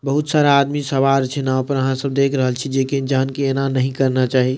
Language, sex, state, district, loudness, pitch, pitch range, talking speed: Maithili, male, Bihar, Madhepura, -18 LUFS, 135 Hz, 130-140 Hz, 250 wpm